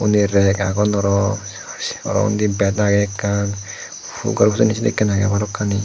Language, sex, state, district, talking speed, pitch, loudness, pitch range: Chakma, male, Tripura, Dhalai, 155 wpm, 100 Hz, -18 LUFS, 100-105 Hz